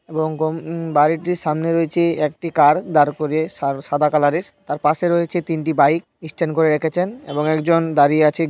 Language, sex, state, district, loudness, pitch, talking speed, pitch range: Bengali, male, West Bengal, North 24 Parganas, -18 LUFS, 160 Hz, 175 wpm, 150-165 Hz